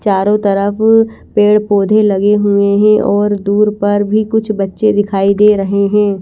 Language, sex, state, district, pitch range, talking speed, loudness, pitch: Hindi, female, Chandigarh, Chandigarh, 200-210 Hz, 165 wpm, -12 LUFS, 205 Hz